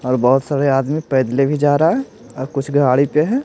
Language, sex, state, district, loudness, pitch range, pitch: Hindi, male, Bihar, Patna, -16 LUFS, 135-150 Hz, 140 Hz